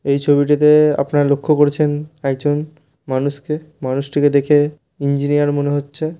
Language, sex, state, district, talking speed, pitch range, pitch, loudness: Bengali, male, West Bengal, Malda, 115 wpm, 140-150 Hz, 145 Hz, -17 LUFS